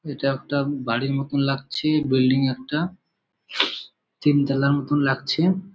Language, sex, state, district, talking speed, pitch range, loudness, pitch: Bengali, male, West Bengal, Malda, 115 wpm, 135-145 Hz, -22 LUFS, 140 Hz